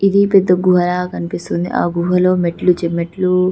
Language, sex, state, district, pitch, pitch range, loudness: Telugu, female, Telangana, Karimnagar, 180 Hz, 170-185 Hz, -15 LUFS